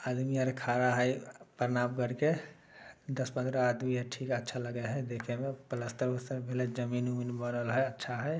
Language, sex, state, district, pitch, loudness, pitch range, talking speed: Maithili, male, Bihar, Samastipur, 125 Hz, -34 LUFS, 125-130 Hz, 165 wpm